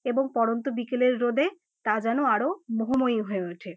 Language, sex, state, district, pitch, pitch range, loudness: Bengali, female, West Bengal, North 24 Parganas, 245 Hz, 225-270 Hz, -26 LUFS